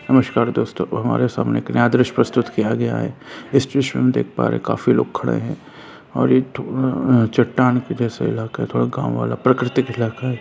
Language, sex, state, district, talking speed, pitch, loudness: Hindi, male, Bihar, Jahanabad, 215 wpm, 115 Hz, -19 LUFS